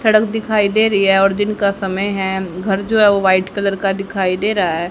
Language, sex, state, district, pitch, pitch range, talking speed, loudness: Hindi, female, Haryana, Jhajjar, 200 Hz, 190-210 Hz, 245 wpm, -16 LUFS